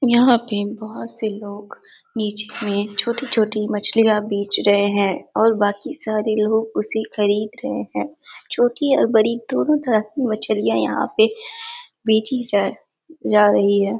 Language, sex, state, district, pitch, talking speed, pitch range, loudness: Hindi, female, Bihar, Jamui, 220 Hz, 140 wpm, 210-250 Hz, -19 LUFS